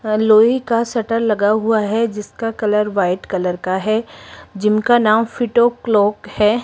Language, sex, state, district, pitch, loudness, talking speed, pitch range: Hindi, female, Rajasthan, Jaipur, 215 Hz, -16 LUFS, 170 wpm, 210-230 Hz